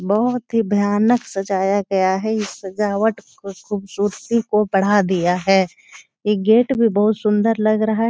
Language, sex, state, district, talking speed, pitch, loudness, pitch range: Hindi, female, Bihar, Jahanabad, 165 wpm, 210 Hz, -18 LUFS, 195-220 Hz